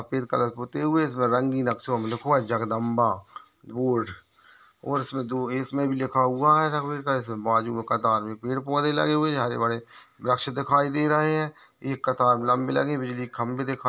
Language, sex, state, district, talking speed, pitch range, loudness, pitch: Hindi, male, Chhattisgarh, Raigarh, 205 wpm, 120-140 Hz, -25 LUFS, 130 Hz